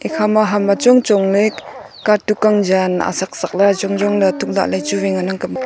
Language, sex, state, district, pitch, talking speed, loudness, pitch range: Wancho, female, Arunachal Pradesh, Longding, 200 Hz, 255 wpm, -15 LUFS, 190-210 Hz